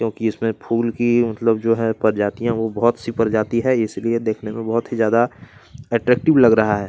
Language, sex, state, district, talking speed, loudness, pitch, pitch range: Hindi, male, Chhattisgarh, Kabirdham, 200 wpm, -19 LUFS, 115 Hz, 110-120 Hz